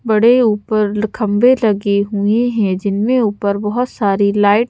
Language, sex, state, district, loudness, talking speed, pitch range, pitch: Hindi, female, Madhya Pradesh, Bhopal, -15 LUFS, 155 wpm, 205-230 Hz, 210 Hz